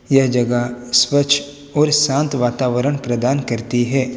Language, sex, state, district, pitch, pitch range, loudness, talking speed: Hindi, male, Gujarat, Valsad, 130 Hz, 120-145 Hz, -17 LUFS, 130 wpm